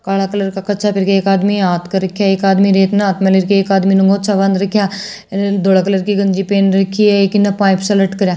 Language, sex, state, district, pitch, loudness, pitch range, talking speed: Hindi, female, Rajasthan, Churu, 195 Hz, -13 LUFS, 195-200 Hz, 300 wpm